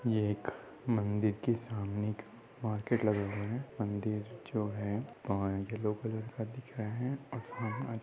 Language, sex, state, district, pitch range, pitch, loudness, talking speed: Hindi, male, Uttar Pradesh, Jyotiba Phule Nagar, 105-115 Hz, 110 Hz, -36 LUFS, 150 wpm